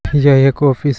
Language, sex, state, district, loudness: Hindi, female, Jharkhand, Garhwa, -12 LUFS